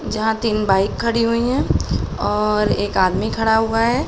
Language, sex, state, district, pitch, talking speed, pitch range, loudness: Hindi, female, Uttar Pradesh, Budaun, 225 Hz, 175 wpm, 210-230 Hz, -18 LUFS